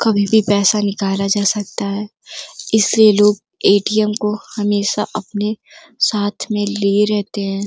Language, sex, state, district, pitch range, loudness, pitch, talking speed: Hindi, female, Uttar Pradesh, Gorakhpur, 200-215 Hz, -16 LUFS, 210 Hz, 140 wpm